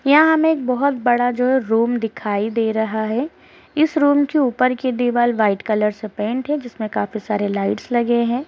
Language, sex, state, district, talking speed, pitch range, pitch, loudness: Hindi, female, Uttar Pradesh, Deoria, 210 wpm, 220-265 Hz, 240 Hz, -19 LUFS